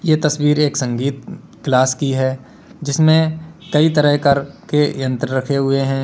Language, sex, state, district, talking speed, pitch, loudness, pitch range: Hindi, male, Uttar Pradesh, Lalitpur, 150 wpm, 140 Hz, -17 LUFS, 135-150 Hz